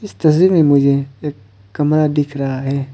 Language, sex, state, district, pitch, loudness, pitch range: Hindi, male, Arunachal Pradesh, Papum Pare, 140 Hz, -15 LUFS, 135-155 Hz